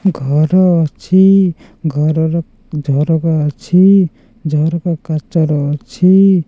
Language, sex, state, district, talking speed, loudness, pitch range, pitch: Odia, male, Odisha, Khordha, 75 wpm, -13 LUFS, 155-185 Hz, 165 Hz